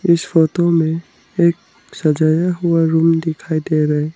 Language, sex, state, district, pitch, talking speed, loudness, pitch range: Hindi, male, Arunachal Pradesh, Lower Dibang Valley, 165 Hz, 160 wpm, -16 LUFS, 155-170 Hz